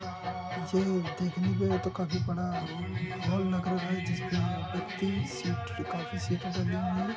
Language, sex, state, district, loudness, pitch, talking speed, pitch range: Hindi, male, Uttar Pradesh, Hamirpur, -32 LUFS, 180 Hz, 110 wpm, 180-185 Hz